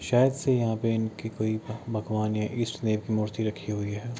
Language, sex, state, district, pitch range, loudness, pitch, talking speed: Hindi, male, Bihar, Kishanganj, 105-115 Hz, -28 LUFS, 110 Hz, 215 wpm